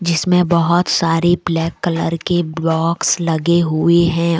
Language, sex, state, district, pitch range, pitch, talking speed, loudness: Hindi, female, Jharkhand, Deoghar, 165-175 Hz, 170 Hz, 135 wpm, -16 LUFS